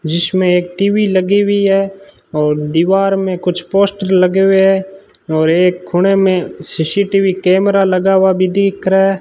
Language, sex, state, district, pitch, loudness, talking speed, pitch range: Hindi, male, Rajasthan, Bikaner, 190 Hz, -13 LUFS, 175 wpm, 180-195 Hz